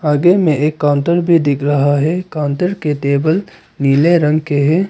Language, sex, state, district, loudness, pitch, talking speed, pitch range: Hindi, male, Arunachal Pradesh, Papum Pare, -14 LUFS, 150 Hz, 185 wpm, 145-170 Hz